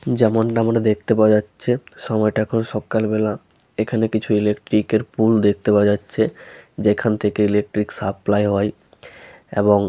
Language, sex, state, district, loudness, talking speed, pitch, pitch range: Bengali, male, West Bengal, Malda, -19 LUFS, 145 wpm, 105 Hz, 105-110 Hz